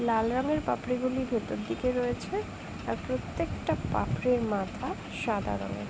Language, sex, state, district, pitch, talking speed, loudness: Bengali, female, West Bengal, Jhargram, 210 Hz, 140 wpm, -31 LUFS